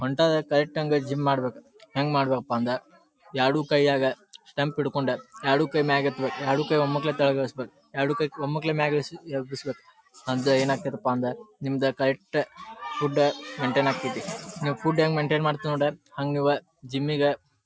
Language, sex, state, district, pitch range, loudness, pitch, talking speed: Kannada, male, Karnataka, Dharwad, 135-150 Hz, -26 LUFS, 140 Hz, 155 wpm